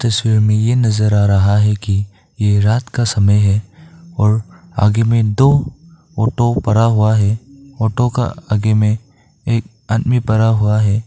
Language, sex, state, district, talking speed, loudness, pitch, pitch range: Hindi, male, Arunachal Pradesh, Papum Pare, 165 wpm, -15 LUFS, 110 Hz, 105-120 Hz